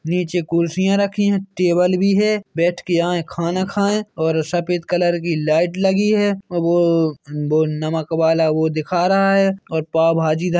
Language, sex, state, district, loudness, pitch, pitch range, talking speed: Hindi, male, Chhattisgarh, Bilaspur, -18 LUFS, 175 Hz, 160-190 Hz, 170 wpm